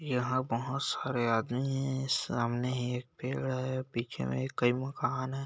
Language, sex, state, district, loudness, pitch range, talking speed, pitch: Hindi, male, Bihar, Bhagalpur, -33 LUFS, 120-130 Hz, 155 wpm, 130 Hz